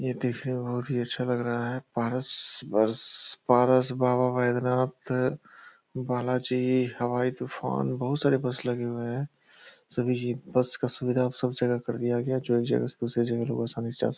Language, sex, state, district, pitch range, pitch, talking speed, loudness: Hindi, male, Bihar, Purnia, 120-125 Hz, 125 Hz, 190 wpm, -26 LUFS